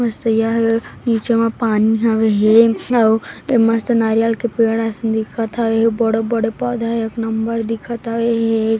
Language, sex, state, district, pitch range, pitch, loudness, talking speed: Hindi, female, Chhattisgarh, Kabirdham, 225-230 Hz, 225 Hz, -17 LUFS, 155 wpm